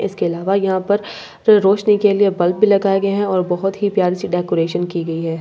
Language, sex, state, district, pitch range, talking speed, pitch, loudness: Hindi, female, Delhi, New Delhi, 175-205 Hz, 255 wpm, 195 Hz, -17 LUFS